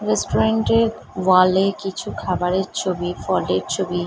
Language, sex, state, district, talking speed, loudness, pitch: Bengali, female, West Bengal, Kolkata, 135 wpm, -20 LUFS, 185 Hz